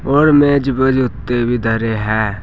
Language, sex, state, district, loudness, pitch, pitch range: Hindi, male, Uttar Pradesh, Saharanpur, -15 LUFS, 120 Hz, 115-135 Hz